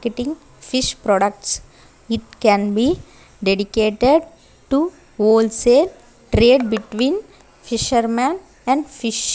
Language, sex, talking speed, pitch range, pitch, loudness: English, female, 90 wpm, 220-275 Hz, 240 Hz, -18 LUFS